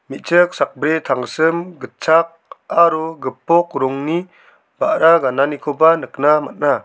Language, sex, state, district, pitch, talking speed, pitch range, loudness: Garo, male, Meghalaya, South Garo Hills, 160 Hz, 95 wpm, 140-170 Hz, -16 LUFS